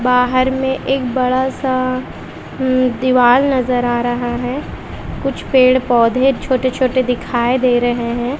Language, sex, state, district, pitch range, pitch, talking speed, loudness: Hindi, female, Bihar, West Champaran, 245-260 Hz, 255 Hz, 135 wpm, -15 LUFS